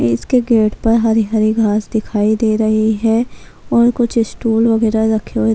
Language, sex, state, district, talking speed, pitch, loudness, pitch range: Urdu, female, Bihar, Kishanganj, 185 wpm, 220 Hz, -15 LUFS, 215-230 Hz